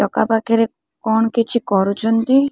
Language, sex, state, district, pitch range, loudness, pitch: Odia, female, Odisha, Khordha, 220-230 Hz, -17 LUFS, 225 Hz